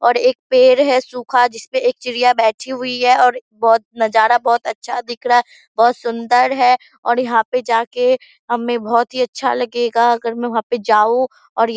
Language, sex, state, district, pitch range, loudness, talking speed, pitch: Hindi, female, Bihar, Purnia, 230-255 Hz, -16 LUFS, 200 wpm, 240 Hz